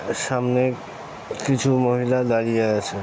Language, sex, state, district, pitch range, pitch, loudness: Bengali, male, West Bengal, North 24 Parganas, 115-130 Hz, 125 Hz, -21 LUFS